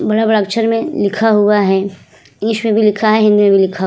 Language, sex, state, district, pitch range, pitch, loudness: Hindi, female, Uttar Pradesh, Budaun, 200-220 Hz, 210 Hz, -13 LUFS